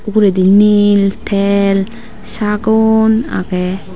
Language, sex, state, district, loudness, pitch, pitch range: Chakma, female, Tripura, Dhalai, -12 LUFS, 200 Hz, 195-210 Hz